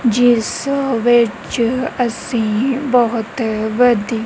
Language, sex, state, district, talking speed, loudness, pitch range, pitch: Punjabi, female, Punjab, Kapurthala, 70 wpm, -16 LUFS, 225-245 Hz, 240 Hz